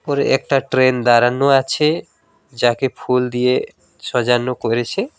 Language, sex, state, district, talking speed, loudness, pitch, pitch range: Bengali, male, West Bengal, Alipurduar, 115 wpm, -17 LUFS, 125 Hz, 120-135 Hz